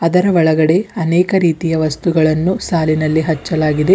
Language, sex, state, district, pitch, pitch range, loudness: Kannada, male, Karnataka, Bidar, 165 Hz, 155-180 Hz, -15 LUFS